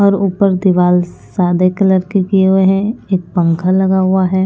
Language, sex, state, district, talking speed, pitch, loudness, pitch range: Hindi, female, Punjab, Pathankot, 190 wpm, 190 Hz, -13 LUFS, 185-195 Hz